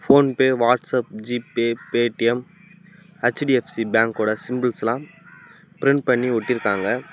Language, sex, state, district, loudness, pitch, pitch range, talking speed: Tamil, male, Tamil Nadu, Namakkal, -21 LUFS, 125 Hz, 115-140 Hz, 95 wpm